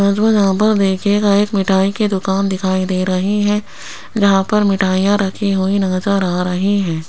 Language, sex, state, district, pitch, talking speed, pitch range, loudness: Hindi, female, Rajasthan, Jaipur, 195 Hz, 180 wpm, 190-205 Hz, -15 LUFS